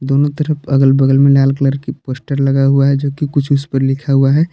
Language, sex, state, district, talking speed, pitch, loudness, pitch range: Hindi, male, Jharkhand, Palamu, 265 wpm, 140 Hz, -13 LUFS, 135-140 Hz